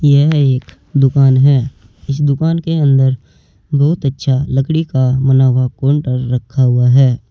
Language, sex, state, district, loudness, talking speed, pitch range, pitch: Hindi, male, Uttar Pradesh, Saharanpur, -13 LUFS, 150 wpm, 130-145 Hz, 135 Hz